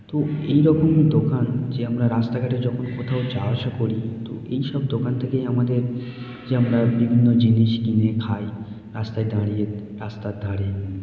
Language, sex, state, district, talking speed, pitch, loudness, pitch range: Bengali, male, West Bengal, Malda, 165 wpm, 120 Hz, -22 LUFS, 110-125 Hz